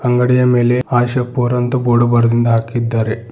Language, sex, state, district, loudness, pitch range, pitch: Kannada, male, Karnataka, Bidar, -14 LUFS, 120-125 Hz, 120 Hz